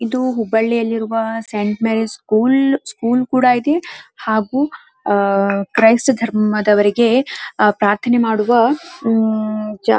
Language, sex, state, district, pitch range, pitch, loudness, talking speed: Kannada, female, Karnataka, Dharwad, 215-250 Hz, 225 Hz, -16 LUFS, 95 wpm